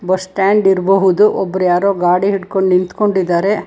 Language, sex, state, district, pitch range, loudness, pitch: Kannada, female, Karnataka, Bangalore, 180-200 Hz, -14 LUFS, 190 Hz